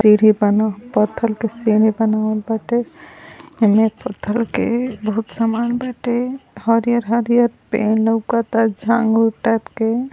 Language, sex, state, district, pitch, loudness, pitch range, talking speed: Bhojpuri, female, Uttar Pradesh, Ghazipur, 225 Hz, -18 LUFS, 215-235 Hz, 125 wpm